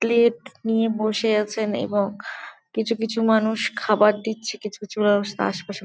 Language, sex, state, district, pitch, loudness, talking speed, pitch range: Bengali, female, West Bengal, Jalpaiguri, 215 Hz, -22 LUFS, 145 wpm, 210-225 Hz